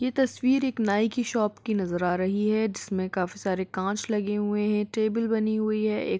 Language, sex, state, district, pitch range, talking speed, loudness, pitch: Hindi, female, Bihar, Gopalganj, 195-225 Hz, 220 wpm, -27 LUFS, 210 Hz